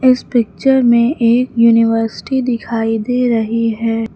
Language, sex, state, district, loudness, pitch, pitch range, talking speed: Hindi, female, Uttar Pradesh, Lucknow, -14 LUFS, 230 Hz, 225-250 Hz, 130 wpm